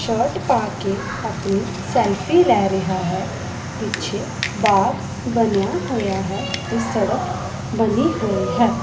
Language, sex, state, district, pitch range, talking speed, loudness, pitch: Punjabi, female, Punjab, Pathankot, 165-200 Hz, 120 wpm, -20 LUFS, 190 Hz